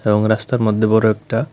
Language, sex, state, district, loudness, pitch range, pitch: Bengali, male, Tripura, West Tripura, -16 LUFS, 110-115 Hz, 110 Hz